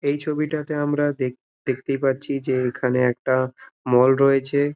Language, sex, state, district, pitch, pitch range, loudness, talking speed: Bengali, male, West Bengal, Malda, 135 Hz, 130-145 Hz, -22 LUFS, 150 wpm